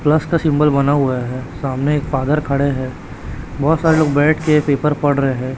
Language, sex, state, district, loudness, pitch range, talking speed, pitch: Hindi, male, Chhattisgarh, Raipur, -16 LUFS, 130-150 Hz, 215 wpm, 140 Hz